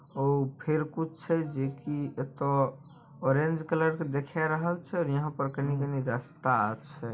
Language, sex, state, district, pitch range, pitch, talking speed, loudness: Maithili, male, Bihar, Samastipur, 135-160 Hz, 145 Hz, 145 wpm, -30 LUFS